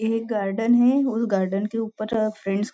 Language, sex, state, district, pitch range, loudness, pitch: Hindi, female, Maharashtra, Nagpur, 205-230 Hz, -23 LUFS, 220 Hz